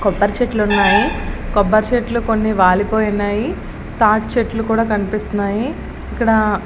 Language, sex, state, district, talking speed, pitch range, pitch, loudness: Telugu, female, Andhra Pradesh, Srikakulam, 125 wpm, 205-225 Hz, 215 Hz, -16 LUFS